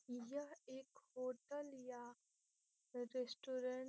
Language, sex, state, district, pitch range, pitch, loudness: Hindi, female, Bihar, Gopalganj, 250-270 Hz, 255 Hz, -50 LUFS